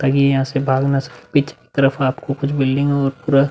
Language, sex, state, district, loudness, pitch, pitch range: Hindi, male, Uttar Pradesh, Budaun, -18 LUFS, 135 Hz, 135-140 Hz